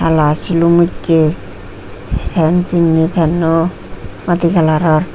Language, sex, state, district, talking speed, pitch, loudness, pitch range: Chakma, female, Tripura, Unakoti, 95 wpm, 160 Hz, -13 LUFS, 150-170 Hz